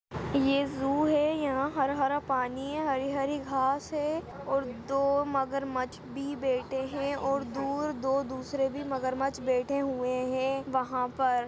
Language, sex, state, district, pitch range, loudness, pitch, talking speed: Hindi, female, Bihar, Jahanabad, 265-280 Hz, -30 LUFS, 275 Hz, 140 wpm